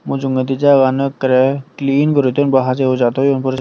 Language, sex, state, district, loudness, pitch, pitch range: Chakma, male, Tripura, Dhalai, -15 LUFS, 135 Hz, 130-140 Hz